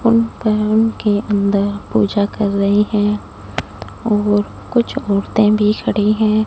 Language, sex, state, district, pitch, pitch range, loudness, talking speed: Hindi, female, Punjab, Fazilka, 210 Hz, 205-215 Hz, -17 LUFS, 120 wpm